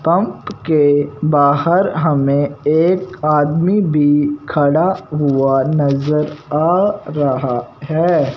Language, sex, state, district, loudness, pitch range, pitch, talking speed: Hindi, male, Punjab, Fazilka, -15 LUFS, 145-160 Hz, 150 Hz, 95 wpm